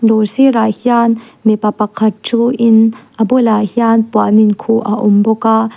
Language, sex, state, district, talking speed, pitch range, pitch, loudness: Mizo, female, Mizoram, Aizawl, 185 wpm, 215-230 Hz, 225 Hz, -12 LUFS